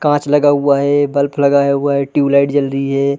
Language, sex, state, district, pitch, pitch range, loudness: Hindi, male, Chhattisgarh, Balrampur, 140 Hz, 140-145 Hz, -14 LUFS